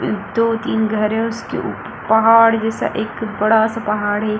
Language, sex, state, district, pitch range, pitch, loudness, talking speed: Hindi, female, Bihar, Kishanganj, 215-225 Hz, 220 Hz, -17 LUFS, 150 wpm